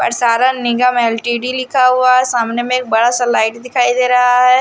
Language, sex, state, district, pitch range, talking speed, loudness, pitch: Hindi, female, Haryana, Charkhi Dadri, 235-255 Hz, 195 wpm, -13 LUFS, 245 Hz